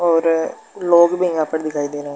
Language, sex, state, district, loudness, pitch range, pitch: Hindi, male, Bihar, Darbhanga, -18 LUFS, 155-170 Hz, 165 Hz